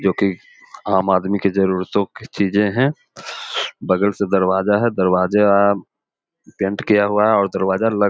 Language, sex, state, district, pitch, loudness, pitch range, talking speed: Hindi, male, Bihar, Jamui, 100 Hz, -18 LUFS, 95-105 Hz, 155 wpm